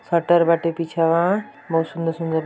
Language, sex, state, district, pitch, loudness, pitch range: Bhojpuri, female, Uttar Pradesh, Ghazipur, 165 Hz, -20 LUFS, 165-170 Hz